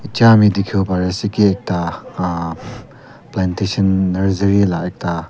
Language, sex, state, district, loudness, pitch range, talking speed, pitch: Nagamese, male, Nagaland, Kohima, -16 LUFS, 90-100 Hz, 115 wpm, 95 Hz